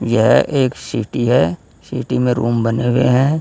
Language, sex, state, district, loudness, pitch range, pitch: Hindi, male, Uttar Pradesh, Saharanpur, -16 LUFS, 115-130 Hz, 120 Hz